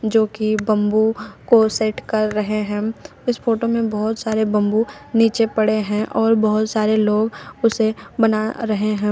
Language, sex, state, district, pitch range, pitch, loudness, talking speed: Hindi, female, Uttar Pradesh, Shamli, 215-225 Hz, 220 Hz, -19 LUFS, 165 wpm